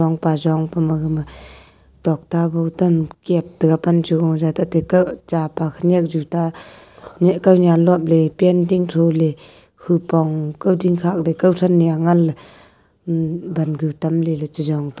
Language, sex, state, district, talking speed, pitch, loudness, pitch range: Wancho, female, Arunachal Pradesh, Longding, 145 wpm, 165 Hz, -18 LUFS, 160-175 Hz